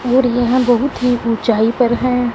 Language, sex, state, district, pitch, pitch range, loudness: Hindi, female, Punjab, Fazilka, 245 Hz, 235-250 Hz, -15 LUFS